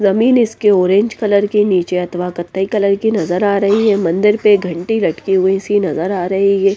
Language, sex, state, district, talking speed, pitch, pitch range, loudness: Hindi, female, Bihar, West Champaran, 215 wpm, 200 Hz, 185-210 Hz, -14 LUFS